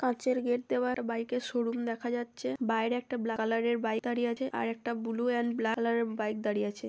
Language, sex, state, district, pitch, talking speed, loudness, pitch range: Bengali, female, West Bengal, Purulia, 235 Hz, 215 wpm, -32 LUFS, 225-245 Hz